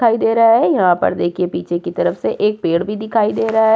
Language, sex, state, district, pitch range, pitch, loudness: Hindi, female, Uttar Pradesh, Jyotiba Phule Nagar, 180-225 Hz, 210 Hz, -16 LUFS